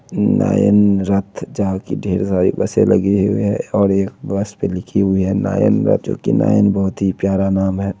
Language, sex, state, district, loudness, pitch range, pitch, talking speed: Hindi, male, Bihar, Begusarai, -16 LUFS, 95-100 Hz, 100 Hz, 200 wpm